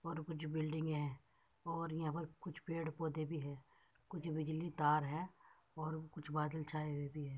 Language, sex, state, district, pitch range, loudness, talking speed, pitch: Hindi, male, Uttar Pradesh, Muzaffarnagar, 150-165 Hz, -43 LUFS, 185 wpm, 155 Hz